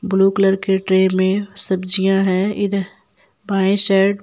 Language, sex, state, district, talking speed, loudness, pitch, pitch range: Hindi, female, Jharkhand, Ranchi, 130 wpm, -16 LUFS, 195 Hz, 190-200 Hz